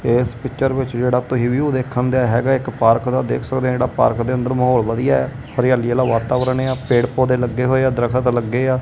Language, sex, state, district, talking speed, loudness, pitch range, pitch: Punjabi, male, Punjab, Kapurthala, 240 wpm, -18 LUFS, 120-130 Hz, 125 Hz